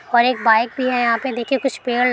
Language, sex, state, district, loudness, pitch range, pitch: Hindi, female, Bihar, Jamui, -18 LUFS, 235-255 Hz, 245 Hz